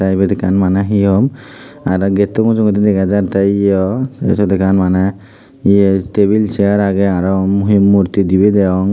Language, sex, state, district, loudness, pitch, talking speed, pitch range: Chakma, male, Tripura, Dhalai, -13 LUFS, 100 Hz, 150 wpm, 95-100 Hz